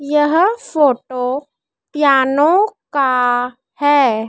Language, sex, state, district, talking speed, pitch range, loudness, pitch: Hindi, female, Madhya Pradesh, Dhar, 70 wpm, 250-300 Hz, -15 LUFS, 280 Hz